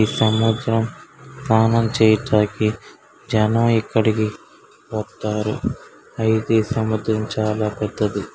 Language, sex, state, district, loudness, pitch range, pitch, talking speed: Telugu, male, Andhra Pradesh, Srikakulam, -20 LUFS, 110-115 Hz, 110 Hz, 80 wpm